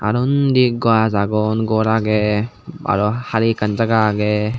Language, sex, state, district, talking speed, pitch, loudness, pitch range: Chakma, male, Tripura, Dhalai, 145 wpm, 110 Hz, -17 LUFS, 105-115 Hz